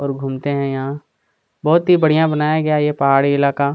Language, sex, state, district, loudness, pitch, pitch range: Hindi, male, Chhattisgarh, Kabirdham, -17 LUFS, 140 Hz, 140-155 Hz